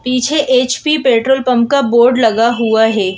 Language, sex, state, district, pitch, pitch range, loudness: Hindi, female, Madhya Pradesh, Bhopal, 250 Hz, 230-265 Hz, -12 LUFS